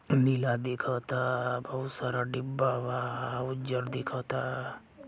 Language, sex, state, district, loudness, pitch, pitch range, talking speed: Bhojpuri, male, Uttar Pradesh, Gorakhpur, -32 LUFS, 130 Hz, 125-130 Hz, 85 wpm